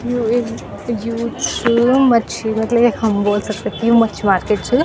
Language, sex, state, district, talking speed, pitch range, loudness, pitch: Garhwali, female, Uttarakhand, Tehri Garhwal, 175 wpm, 220-240 Hz, -16 LUFS, 230 Hz